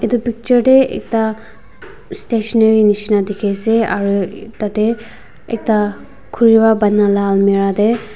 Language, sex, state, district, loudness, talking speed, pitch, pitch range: Nagamese, female, Nagaland, Dimapur, -14 LUFS, 120 wpm, 220 Hz, 205-230 Hz